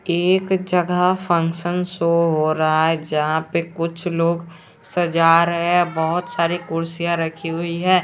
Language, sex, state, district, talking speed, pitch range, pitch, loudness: Hindi, male, Bihar, West Champaran, 140 wpm, 165-175 Hz, 170 Hz, -19 LUFS